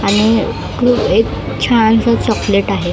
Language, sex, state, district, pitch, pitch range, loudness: Marathi, female, Maharashtra, Mumbai Suburban, 220 Hz, 200-235 Hz, -14 LUFS